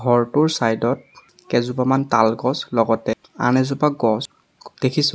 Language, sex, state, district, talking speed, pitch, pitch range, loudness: Assamese, male, Assam, Sonitpur, 130 wpm, 125 Hz, 115-135 Hz, -20 LUFS